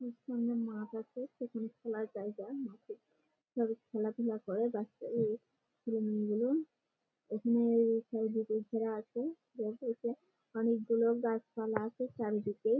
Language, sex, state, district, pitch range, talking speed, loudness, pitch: Bengali, female, West Bengal, Malda, 220-235 Hz, 110 wpm, -36 LUFS, 225 Hz